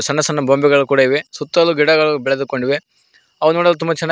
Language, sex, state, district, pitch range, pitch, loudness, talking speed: Kannada, male, Karnataka, Koppal, 140-160 Hz, 150 Hz, -15 LUFS, 175 wpm